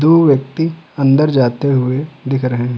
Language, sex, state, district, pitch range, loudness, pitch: Hindi, male, Uttar Pradesh, Lucknow, 130-155 Hz, -15 LUFS, 140 Hz